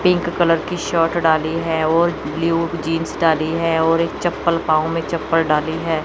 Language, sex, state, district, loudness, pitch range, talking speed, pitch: Hindi, female, Chandigarh, Chandigarh, -18 LUFS, 160-170 Hz, 190 wpm, 165 Hz